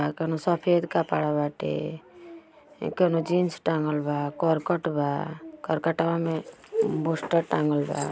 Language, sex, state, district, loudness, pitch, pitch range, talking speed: Bhojpuri, female, Uttar Pradesh, Ghazipur, -26 LUFS, 165 Hz, 150-175 Hz, 120 wpm